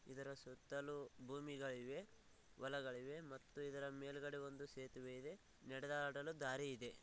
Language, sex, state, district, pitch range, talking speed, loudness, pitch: Kannada, male, Karnataka, Raichur, 130-145 Hz, 130 wpm, -50 LUFS, 140 Hz